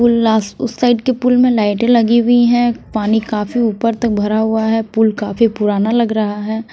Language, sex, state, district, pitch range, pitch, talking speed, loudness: Hindi, female, Punjab, Kapurthala, 215-240 Hz, 225 Hz, 205 wpm, -14 LUFS